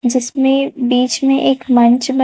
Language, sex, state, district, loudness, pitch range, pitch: Hindi, female, Chhattisgarh, Raipur, -14 LUFS, 250-270 Hz, 260 Hz